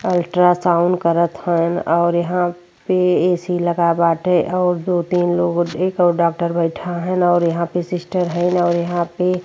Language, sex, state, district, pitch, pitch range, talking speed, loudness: Bhojpuri, female, Uttar Pradesh, Deoria, 175 Hz, 170-180 Hz, 180 wpm, -17 LUFS